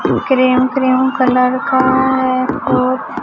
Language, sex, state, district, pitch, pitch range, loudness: Hindi, male, Chhattisgarh, Raipur, 260 Hz, 255-265 Hz, -14 LUFS